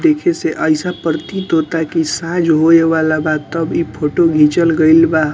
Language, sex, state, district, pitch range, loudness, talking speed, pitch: Bhojpuri, male, Bihar, Muzaffarpur, 155-170 Hz, -14 LUFS, 190 wpm, 165 Hz